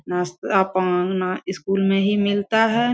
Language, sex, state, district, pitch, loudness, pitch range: Hindi, female, Jharkhand, Sahebganj, 195 Hz, -21 LUFS, 185-205 Hz